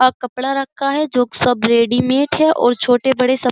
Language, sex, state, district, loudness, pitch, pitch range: Hindi, female, Uttar Pradesh, Jyotiba Phule Nagar, -16 LUFS, 255 Hz, 245-275 Hz